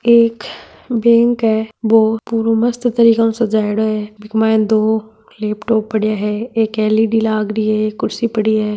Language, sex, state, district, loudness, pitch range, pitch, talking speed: Marwari, female, Rajasthan, Nagaur, -15 LUFS, 215-230 Hz, 220 Hz, 170 wpm